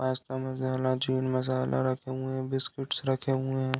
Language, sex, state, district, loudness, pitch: Hindi, male, Uttar Pradesh, Deoria, -28 LUFS, 130 Hz